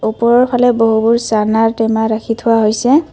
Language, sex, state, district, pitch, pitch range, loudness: Assamese, female, Assam, Kamrup Metropolitan, 225 Hz, 220-240 Hz, -13 LUFS